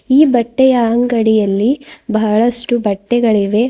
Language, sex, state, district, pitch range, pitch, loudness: Kannada, female, Karnataka, Bidar, 215-245 Hz, 235 Hz, -13 LUFS